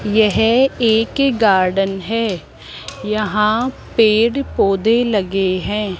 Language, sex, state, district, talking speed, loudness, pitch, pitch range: Hindi, female, Rajasthan, Jaipur, 90 wpm, -16 LUFS, 215 Hz, 195-230 Hz